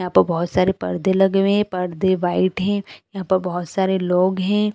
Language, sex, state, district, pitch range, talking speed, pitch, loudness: Hindi, female, Chhattisgarh, Balrampur, 180-195 Hz, 215 wpm, 185 Hz, -19 LUFS